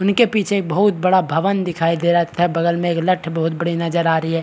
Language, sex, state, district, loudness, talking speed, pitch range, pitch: Hindi, male, Chhattisgarh, Rajnandgaon, -18 LUFS, 270 wpm, 165-185 Hz, 170 Hz